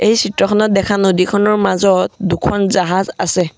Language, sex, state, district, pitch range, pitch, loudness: Assamese, male, Assam, Sonitpur, 185-205 Hz, 195 Hz, -14 LUFS